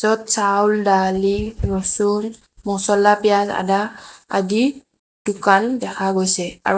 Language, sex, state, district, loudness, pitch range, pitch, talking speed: Assamese, female, Assam, Sonitpur, -18 LUFS, 195-215 Hz, 205 Hz, 105 wpm